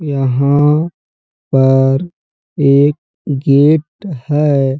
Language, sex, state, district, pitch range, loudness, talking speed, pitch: Hindi, male, Uttar Pradesh, Jalaun, 135-150 Hz, -13 LUFS, 60 wpm, 145 Hz